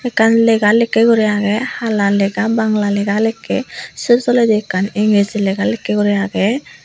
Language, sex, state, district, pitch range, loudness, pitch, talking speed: Chakma, female, Tripura, Unakoti, 200-230 Hz, -15 LUFS, 215 Hz, 160 wpm